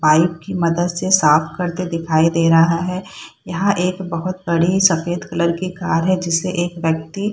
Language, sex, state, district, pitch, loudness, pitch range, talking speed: Hindi, female, Bihar, Saharsa, 175 Hz, -18 LUFS, 165-185 Hz, 190 wpm